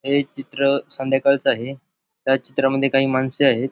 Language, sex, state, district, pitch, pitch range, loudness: Marathi, male, Maharashtra, Pune, 135 Hz, 135-140 Hz, -20 LUFS